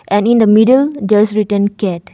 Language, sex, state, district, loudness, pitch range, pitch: English, female, Arunachal Pradesh, Longding, -12 LUFS, 205-225 Hz, 210 Hz